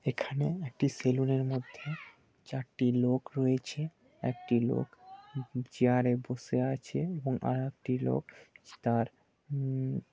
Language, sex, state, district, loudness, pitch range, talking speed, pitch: Bengali, male, West Bengal, Purulia, -33 LUFS, 125-145 Hz, 125 wpm, 130 Hz